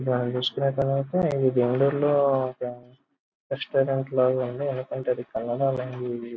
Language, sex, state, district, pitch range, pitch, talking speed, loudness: Telugu, male, Andhra Pradesh, Krishna, 125-135 Hz, 130 Hz, 75 wpm, -25 LUFS